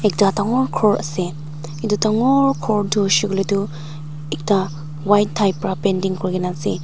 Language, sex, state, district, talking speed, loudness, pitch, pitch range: Nagamese, female, Nagaland, Dimapur, 165 wpm, -19 LUFS, 195 Hz, 160-210 Hz